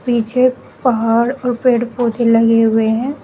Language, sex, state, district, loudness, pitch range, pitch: Hindi, female, Uttar Pradesh, Shamli, -15 LUFS, 230-250 Hz, 240 Hz